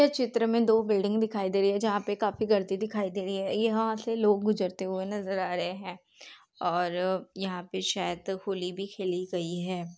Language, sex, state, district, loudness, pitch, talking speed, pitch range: Hindi, female, Bihar, Darbhanga, -29 LUFS, 195 Hz, 210 wpm, 185-210 Hz